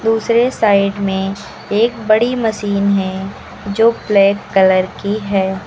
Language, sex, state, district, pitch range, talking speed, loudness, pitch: Hindi, female, Uttar Pradesh, Lucknow, 195-225 Hz, 125 wpm, -15 LUFS, 200 Hz